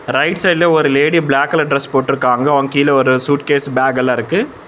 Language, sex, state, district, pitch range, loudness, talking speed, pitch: Tamil, male, Tamil Nadu, Chennai, 135-150 Hz, -14 LUFS, 165 wpm, 140 Hz